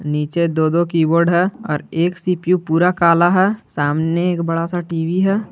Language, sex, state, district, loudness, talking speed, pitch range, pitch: Hindi, male, Jharkhand, Garhwa, -17 LUFS, 185 wpm, 165-180 Hz, 170 Hz